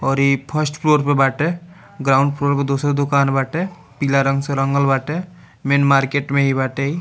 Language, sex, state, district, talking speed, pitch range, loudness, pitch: Bhojpuri, male, Bihar, Muzaffarpur, 195 wpm, 135-150 Hz, -18 LUFS, 140 Hz